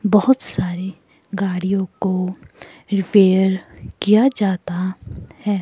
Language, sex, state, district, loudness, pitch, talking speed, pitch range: Hindi, female, Himachal Pradesh, Shimla, -19 LUFS, 190 Hz, 85 wpm, 185-205 Hz